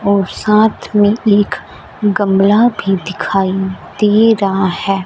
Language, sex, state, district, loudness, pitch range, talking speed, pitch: Hindi, female, Punjab, Fazilka, -13 LUFS, 195-210 Hz, 120 wpm, 200 Hz